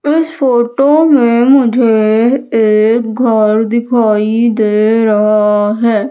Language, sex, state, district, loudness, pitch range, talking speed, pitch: Hindi, female, Madhya Pradesh, Umaria, -10 LUFS, 215-255 Hz, 100 wpm, 230 Hz